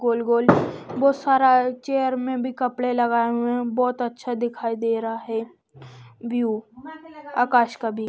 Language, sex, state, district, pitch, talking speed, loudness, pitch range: Hindi, female, Bihar, West Champaran, 240 Hz, 155 wpm, -22 LUFS, 230-255 Hz